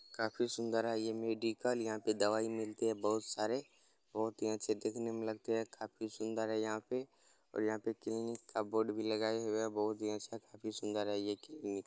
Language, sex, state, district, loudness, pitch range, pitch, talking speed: Hindi, male, Bihar, Gopalganj, -39 LUFS, 110-115 Hz, 110 Hz, 215 wpm